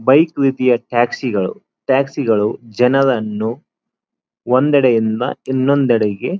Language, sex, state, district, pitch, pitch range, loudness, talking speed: Kannada, male, Karnataka, Dharwad, 125 Hz, 115-135 Hz, -16 LUFS, 75 wpm